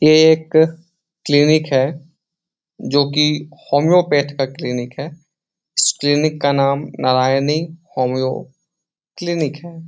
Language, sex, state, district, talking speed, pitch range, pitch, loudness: Hindi, male, Bihar, Jahanabad, 115 wpm, 140-165 Hz, 150 Hz, -17 LUFS